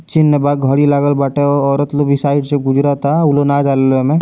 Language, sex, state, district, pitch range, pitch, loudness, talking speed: Bhojpuri, male, Bihar, Muzaffarpur, 140-145 Hz, 145 Hz, -13 LUFS, 225 wpm